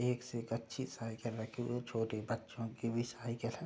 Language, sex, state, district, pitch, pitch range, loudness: Hindi, male, Bihar, Sitamarhi, 115 Hz, 115-120 Hz, -41 LUFS